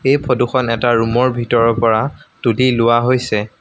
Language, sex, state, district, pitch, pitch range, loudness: Assamese, male, Assam, Sonitpur, 120 Hz, 115-130 Hz, -15 LUFS